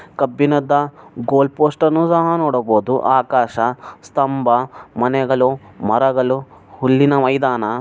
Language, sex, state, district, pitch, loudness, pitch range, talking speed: Kannada, male, Karnataka, Bellary, 135 Hz, -17 LUFS, 130-145 Hz, 90 wpm